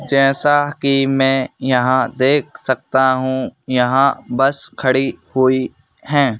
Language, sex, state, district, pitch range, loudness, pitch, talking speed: Hindi, male, Madhya Pradesh, Bhopal, 130-140 Hz, -16 LUFS, 135 Hz, 115 wpm